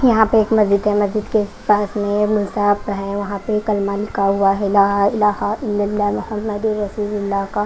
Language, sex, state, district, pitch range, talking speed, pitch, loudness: Hindi, female, Haryana, Rohtak, 200-210 Hz, 165 wpm, 205 Hz, -18 LUFS